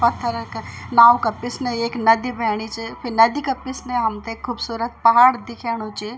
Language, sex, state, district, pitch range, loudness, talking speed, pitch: Garhwali, female, Uttarakhand, Tehri Garhwal, 225-245 Hz, -19 LUFS, 185 wpm, 235 Hz